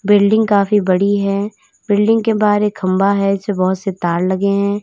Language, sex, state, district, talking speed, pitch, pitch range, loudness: Hindi, female, Uttar Pradesh, Lalitpur, 200 wpm, 200 Hz, 195-205 Hz, -15 LUFS